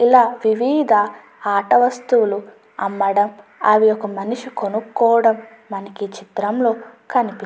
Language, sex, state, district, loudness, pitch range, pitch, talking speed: Telugu, female, Andhra Pradesh, Chittoor, -18 LUFS, 205-235 Hz, 220 Hz, 105 wpm